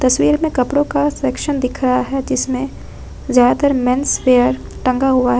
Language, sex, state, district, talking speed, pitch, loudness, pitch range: Hindi, female, Jharkhand, Ranchi, 165 wpm, 260 Hz, -16 LUFS, 250-280 Hz